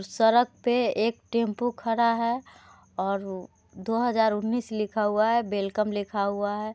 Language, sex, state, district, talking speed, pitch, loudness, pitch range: Hindi, female, Bihar, Muzaffarpur, 150 wpm, 220 Hz, -26 LUFS, 205-235 Hz